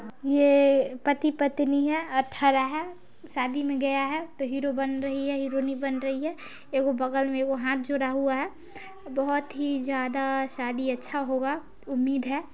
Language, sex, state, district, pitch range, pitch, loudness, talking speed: Maithili, female, Bihar, Samastipur, 270-285 Hz, 275 Hz, -27 LUFS, 170 wpm